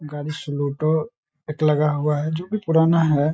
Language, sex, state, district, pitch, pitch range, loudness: Hindi, male, Bihar, Saharsa, 155 Hz, 150-160 Hz, -21 LUFS